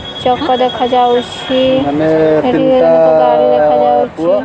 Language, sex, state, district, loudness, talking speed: Odia, female, Odisha, Khordha, -11 LUFS, 95 wpm